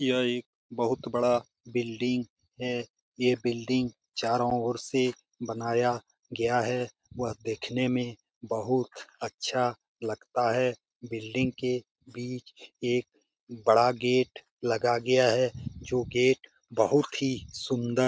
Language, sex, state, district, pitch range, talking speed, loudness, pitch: Hindi, male, Bihar, Jamui, 115-125 Hz, 130 wpm, -29 LUFS, 120 Hz